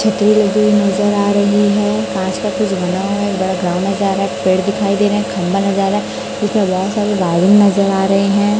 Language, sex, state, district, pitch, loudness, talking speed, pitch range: Hindi, male, Chhattisgarh, Raipur, 200 Hz, -14 LUFS, 270 wpm, 190-205 Hz